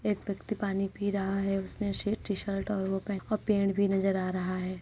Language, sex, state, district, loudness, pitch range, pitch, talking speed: Hindi, female, Uttar Pradesh, Budaun, -31 LUFS, 195-205 Hz, 195 Hz, 225 wpm